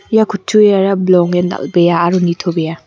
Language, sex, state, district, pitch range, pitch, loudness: Garo, female, Meghalaya, West Garo Hills, 175-195 Hz, 180 Hz, -13 LUFS